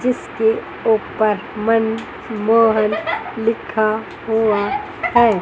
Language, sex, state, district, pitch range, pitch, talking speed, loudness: Hindi, female, Chandigarh, Chandigarh, 215-240 Hz, 225 Hz, 65 wpm, -18 LUFS